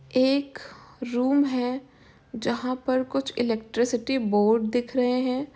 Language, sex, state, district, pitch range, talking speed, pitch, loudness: Hindi, female, Uttar Pradesh, Jyotiba Phule Nagar, 240-260 Hz, 120 wpm, 250 Hz, -25 LUFS